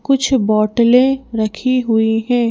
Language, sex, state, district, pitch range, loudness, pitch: Hindi, female, Madhya Pradesh, Bhopal, 220-260 Hz, -15 LUFS, 240 Hz